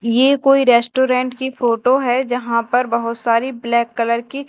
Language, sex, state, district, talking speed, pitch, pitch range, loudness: Hindi, female, Madhya Pradesh, Dhar, 175 wpm, 245 Hz, 235-260 Hz, -16 LUFS